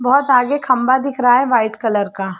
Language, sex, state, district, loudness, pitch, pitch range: Hindi, female, Chhattisgarh, Bilaspur, -15 LUFS, 245 Hz, 220-265 Hz